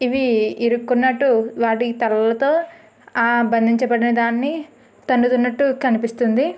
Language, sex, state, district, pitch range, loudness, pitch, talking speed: Telugu, female, Andhra Pradesh, Srikakulam, 235-260 Hz, -18 LUFS, 240 Hz, 100 wpm